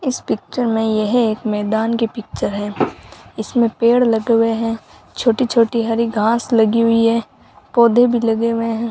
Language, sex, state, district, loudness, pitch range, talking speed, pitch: Hindi, female, Rajasthan, Bikaner, -17 LUFS, 225-235 Hz, 175 wpm, 230 Hz